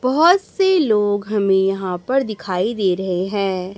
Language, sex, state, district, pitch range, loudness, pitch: Hindi, female, Chhattisgarh, Raipur, 190-255 Hz, -18 LUFS, 205 Hz